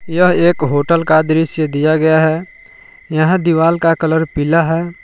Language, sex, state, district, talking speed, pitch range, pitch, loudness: Hindi, male, Jharkhand, Palamu, 165 wpm, 155-170 Hz, 165 Hz, -14 LUFS